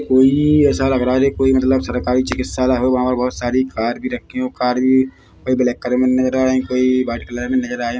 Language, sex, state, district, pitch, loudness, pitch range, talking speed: Hindi, male, Chhattisgarh, Bilaspur, 130 Hz, -17 LUFS, 125-130 Hz, 255 wpm